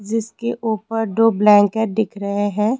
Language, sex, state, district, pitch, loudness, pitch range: Hindi, female, Rajasthan, Jaipur, 220 Hz, -18 LUFS, 205-225 Hz